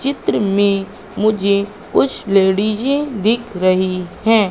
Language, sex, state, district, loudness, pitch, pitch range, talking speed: Hindi, female, Madhya Pradesh, Katni, -17 LUFS, 200 Hz, 195-220 Hz, 105 wpm